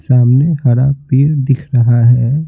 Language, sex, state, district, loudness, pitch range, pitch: Hindi, male, Bihar, Patna, -11 LUFS, 125-140 Hz, 130 Hz